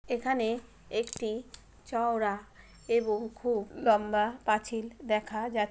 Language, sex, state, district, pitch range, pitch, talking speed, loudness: Bengali, female, West Bengal, Malda, 215-240 Hz, 225 Hz, 95 wpm, -31 LUFS